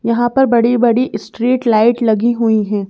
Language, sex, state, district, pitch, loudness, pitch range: Hindi, female, Madhya Pradesh, Bhopal, 235 Hz, -14 LUFS, 220-240 Hz